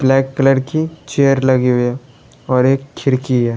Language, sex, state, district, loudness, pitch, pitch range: Hindi, male, Uttar Pradesh, Lalitpur, -15 LUFS, 135 Hz, 125-135 Hz